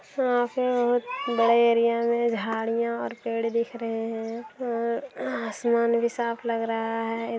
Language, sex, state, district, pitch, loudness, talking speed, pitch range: Hindi, female, Bihar, Darbhanga, 235 Hz, -26 LUFS, 155 wpm, 230-235 Hz